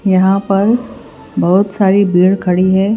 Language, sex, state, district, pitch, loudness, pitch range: Hindi, female, Chhattisgarh, Raipur, 195 Hz, -12 LUFS, 185-200 Hz